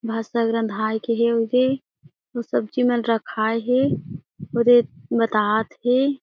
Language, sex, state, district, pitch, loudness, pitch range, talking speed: Chhattisgarhi, female, Chhattisgarh, Jashpur, 230 Hz, -21 LUFS, 220-245 Hz, 115 wpm